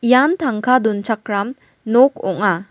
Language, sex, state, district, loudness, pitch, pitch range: Garo, female, Meghalaya, West Garo Hills, -17 LUFS, 230 Hz, 205-255 Hz